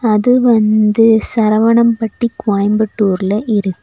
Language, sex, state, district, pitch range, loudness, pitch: Tamil, female, Tamil Nadu, Nilgiris, 210-230 Hz, -13 LUFS, 220 Hz